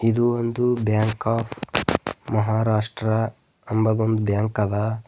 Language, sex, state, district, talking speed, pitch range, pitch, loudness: Kannada, male, Karnataka, Bidar, 105 wpm, 110-115 Hz, 110 Hz, -23 LUFS